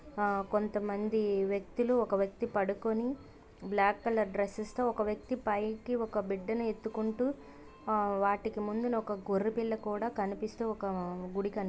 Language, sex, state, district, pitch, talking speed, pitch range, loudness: Telugu, female, Andhra Pradesh, Guntur, 210 Hz, 135 wpm, 200-225 Hz, -33 LUFS